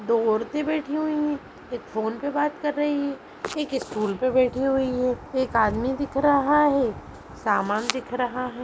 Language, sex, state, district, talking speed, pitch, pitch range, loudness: Hindi, female, Chhattisgarh, Sarguja, 190 wpm, 260 Hz, 240-290 Hz, -24 LUFS